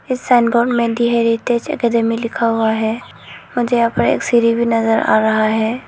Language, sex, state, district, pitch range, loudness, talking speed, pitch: Hindi, female, Arunachal Pradesh, Lower Dibang Valley, 225-240 Hz, -16 LUFS, 185 wpm, 235 Hz